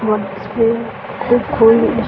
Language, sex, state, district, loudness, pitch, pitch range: Hindi, female, Bihar, Sitamarhi, -15 LUFS, 225 Hz, 210-230 Hz